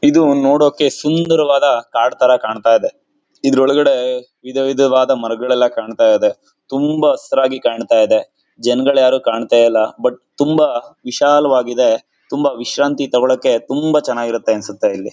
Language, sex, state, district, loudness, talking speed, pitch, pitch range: Kannada, male, Karnataka, Mysore, -15 LUFS, 125 wpm, 135 Hz, 125-150 Hz